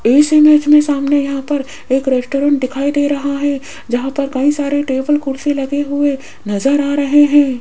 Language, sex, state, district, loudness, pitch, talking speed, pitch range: Hindi, female, Rajasthan, Jaipur, -14 LUFS, 285 Hz, 190 wpm, 270-290 Hz